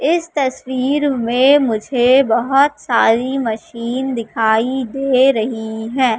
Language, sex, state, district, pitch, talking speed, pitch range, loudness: Hindi, female, Madhya Pradesh, Katni, 255 Hz, 105 wpm, 230-270 Hz, -16 LUFS